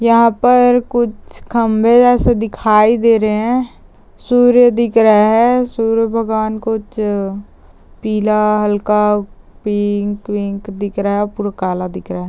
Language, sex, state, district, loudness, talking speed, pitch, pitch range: Hindi, female, Bihar, Saharsa, -14 LUFS, 130 wpm, 215 Hz, 205-235 Hz